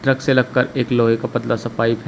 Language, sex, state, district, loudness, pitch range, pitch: Hindi, male, Uttar Pradesh, Shamli, -18 LUFS, 115-130 Hz, 125 Hz